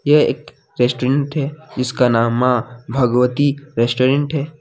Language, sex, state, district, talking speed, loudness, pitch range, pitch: Hindi, male, Jharkhand, Deoghar, 130 wpm, -17 LUFS, 125-145 Hz, 130 Hz